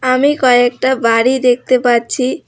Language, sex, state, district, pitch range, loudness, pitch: Bengali, female, West Bengal, Alipurduar, 245-260 Hz, -12 LUFS, 255 Hz